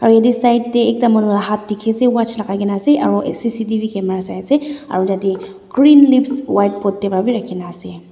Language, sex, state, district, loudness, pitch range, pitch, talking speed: Nagamese, female, Nagaland, Dimapur, -15 LUFS, 195-240 Hz, 215 Hz, 230 wpm